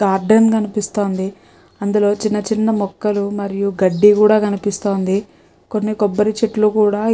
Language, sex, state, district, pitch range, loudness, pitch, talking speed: Telugu, female, Telangana, Nalgonda, 200-215 Hz, -16 LUFS, 210 Hz, 125 wpm